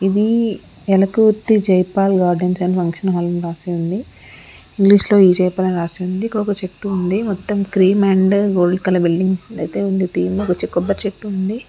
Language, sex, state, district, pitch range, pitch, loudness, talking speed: Telugu, female, Telangana, Karimnagar, 180-205 Hz, 190 Hz, -17 LUFS, 160 wpm